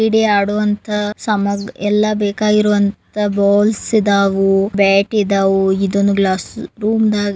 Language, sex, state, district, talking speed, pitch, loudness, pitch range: Kannada, female, Karnataka, Belgaum, 115 wpm, 205 Hz, -15 LUFS, 200-210 Hz